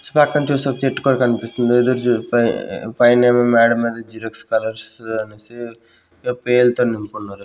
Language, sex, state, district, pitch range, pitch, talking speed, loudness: Telugu, male, Andhra Pradesh, Sri Satya Sai, 110-125 Hz, 120 Hz, 155 wpm, -17 LUFS